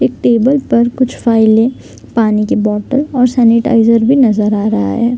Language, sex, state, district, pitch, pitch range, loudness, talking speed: Hindi, female, Bihar, Gopalganj, 235 Hz, 220-250 Hz, -11 LUFS, 175 wpm